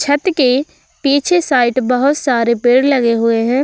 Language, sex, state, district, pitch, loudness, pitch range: Hindi, female, Uttar Pradesh, Budaun, 260 Hz, -14 LUFS, 245-285 Hz